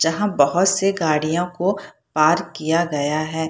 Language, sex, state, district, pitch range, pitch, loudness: Hindi, female, Bihar, Purnia, 155-180 Hz, 165 Hz, -20 LUFS